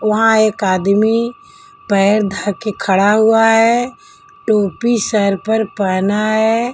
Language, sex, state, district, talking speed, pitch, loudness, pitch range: Hindi, female, Delhi, New Delhi, 125 wpm, 220 Hz, -14 LUFS, 205-235 Hz